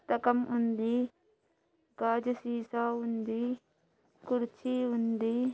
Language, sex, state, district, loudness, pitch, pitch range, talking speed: Telugu, female, Andhra Pradesh, Anantapur, -32 LUFS, 240 Hz, 230-245 Hz, 65 wpm